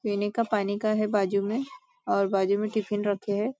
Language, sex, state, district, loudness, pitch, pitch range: Hindi, female, Maharashtra, Nagpur, -27 LUFS, 210 Hz, 200-215 Hz